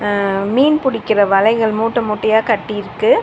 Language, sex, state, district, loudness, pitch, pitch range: Tamil, female, Tamil Nadu, Chennai, -15 LUFS, 220 Hz, 205-235 Hz